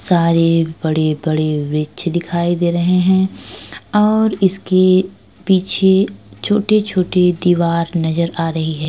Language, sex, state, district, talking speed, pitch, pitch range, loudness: Hindi, female, Uttar Pradesh, Etah, 110 wpm, 175 Hz, 165-190 Hz, -15 LUFS